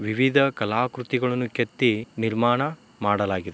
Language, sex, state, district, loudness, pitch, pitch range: Kannada, male, Karnataka, Dharwad, -24 LUFS, 120 Hz, 110-125 Hz